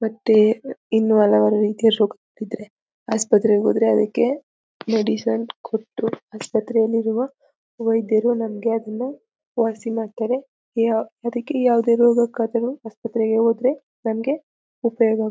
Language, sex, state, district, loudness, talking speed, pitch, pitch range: Kannada, female, Karnataka, Mysore, -21 LUFS, 100 wpm, 225 Hz, 220-240 Hz